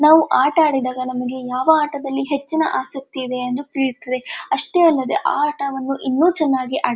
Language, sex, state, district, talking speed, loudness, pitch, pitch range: Kannada, female, Karnataka, Dharwad, 155 wpm, -19 LUFS, 275 Hz, 255-300 Hz